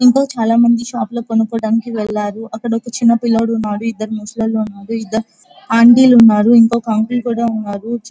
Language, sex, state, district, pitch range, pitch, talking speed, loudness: Telugu, female, Andhra Pradesh, Guntur, 220-235 Hz, 225 Hz, 170 wpm, -14 LUFS